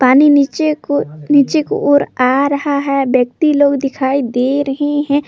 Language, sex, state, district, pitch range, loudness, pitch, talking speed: Hindi, female, Jharkhand, Palamu, 265-290 Hz, -14 LUFS, 280 Hz, 160 wpm